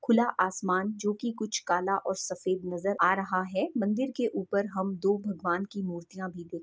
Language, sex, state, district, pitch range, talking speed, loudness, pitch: Hindi, female, Chhattisgarh, Bastar, 185-210 Hz, 210 wpm, -30 LUFS, 195 Hz